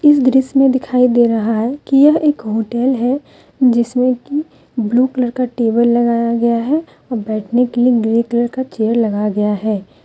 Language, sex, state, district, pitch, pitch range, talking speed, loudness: Hindi, female, Jharkhand, Deoghar, 240 Hz, 230-260 Hz, 185 wpm, -15 LUFS